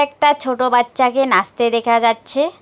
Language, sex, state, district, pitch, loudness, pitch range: Bengali, female, West Bengal, Alipurduar, 255 Hz, -15 LUFS, 235-285 Hz